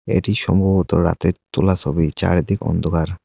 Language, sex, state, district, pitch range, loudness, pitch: Bengali, male, West Bengal, Cooch Behar, 85-95 Hz, -19 LUFS, 90 Hz